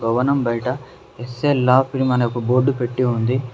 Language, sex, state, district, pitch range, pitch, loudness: Telugu, male, Telangana, Mahabubabad, 120-130 Hz, 125 Hz, -19 LUFS